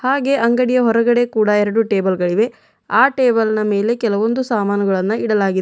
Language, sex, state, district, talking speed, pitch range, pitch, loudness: Kannada, female, Karnataka, Bidar, 140 wpm, 205-240 Hz, 225 Hz, -16 LUFS